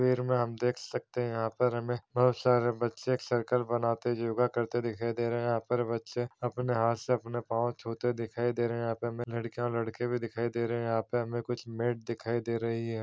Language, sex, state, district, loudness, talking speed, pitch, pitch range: Hindi, male, Chhattisgarh, Korba, -32 LUFS, 250 wpm, 120 Hz, 115-120 Hz